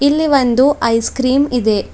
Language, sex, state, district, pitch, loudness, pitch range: Kannada, female, Karnataka, Bidar, 260 Hz, -14 LUFS, 235-280 Hz